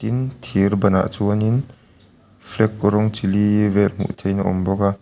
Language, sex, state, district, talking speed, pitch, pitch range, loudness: Mizo, male, Mizoram, Aizawl, 205 wpm, 105 Hz, 100-110 Hz, -19 LUFS